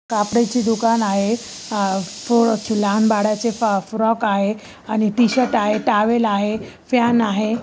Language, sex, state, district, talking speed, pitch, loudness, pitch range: Marathi, female, Maharashtra, Chandrapur, 175 wpm, 220 Hz, -19 LUFS, 210-230 Hz